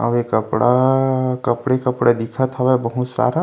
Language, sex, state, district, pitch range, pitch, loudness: Chhattisgarhi, male, Chhattisgarh, Kabirdham, 120-130 Hz, 125 Hz, -18 LUFS